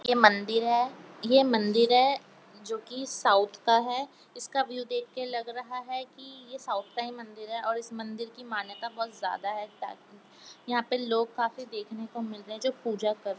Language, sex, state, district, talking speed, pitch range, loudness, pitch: Hindi, female, Bihar, Jamui, 205 wpm, 215-250 Hz, -29 LUFS, 235 Hz